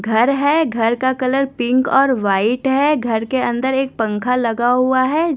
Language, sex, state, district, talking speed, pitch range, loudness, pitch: Hindi, female, Bihar, West Champaran, 190 wpm, 235-270 Hz, -17 LUFS, 255 Hz